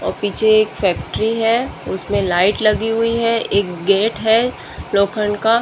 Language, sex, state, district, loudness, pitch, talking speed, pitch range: Hindi, female, Uttar Pradesh, Muzaffarnagar, -17 LUFS, 215 Hz, 170 wpm, 200-225 Hz